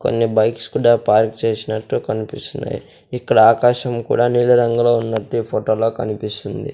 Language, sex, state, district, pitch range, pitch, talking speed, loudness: Telugu, male, Andhra Pradesh, Sri Satya Sai, 110-120 Hz, 115 Hz, 125 wpm, -17 LUFS